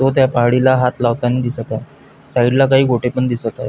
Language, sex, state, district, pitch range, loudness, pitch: Marathi, male, Maharashtra, Pune, 120-135 Hz, -16 LUFS, 125 Hz